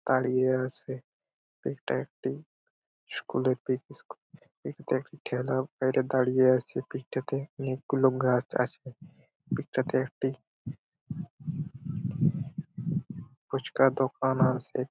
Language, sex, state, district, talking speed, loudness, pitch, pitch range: Bengali, male, West Bengal, Purulia, 105 wpm, -30 LUFS, 130 Hz, 130-150 Hz